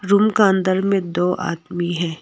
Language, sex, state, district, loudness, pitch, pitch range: Hindi, female, Arunachal Pradesh, Longding, -19 LUFS, 185 Hz, 175-200 Hz